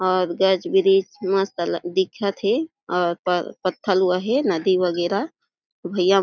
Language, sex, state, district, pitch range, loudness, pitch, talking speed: Chhattisgarhi, female, Chhattisgarh, Jashpur, 180-275 Hz, -21 LUFS, 190 Hz, 155 wpm